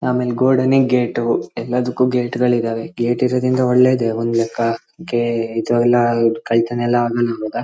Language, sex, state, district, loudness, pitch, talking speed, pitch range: Kannada, male, Karnataka, Shimoga, -17 LUFS, 120 Hz, 140 wpm, 115-125 Hz